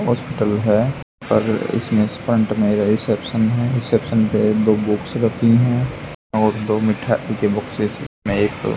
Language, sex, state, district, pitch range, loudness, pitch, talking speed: Hindi, male, Haryana, Charkhi Dadri, 105-115 Hz, -19 LUFS, 110 Hz, 150 wpm